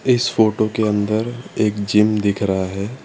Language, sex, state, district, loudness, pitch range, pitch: Hindi, male, Gujarat, Valsad, -18 LUFS, 100-110 Hz, 105 Hz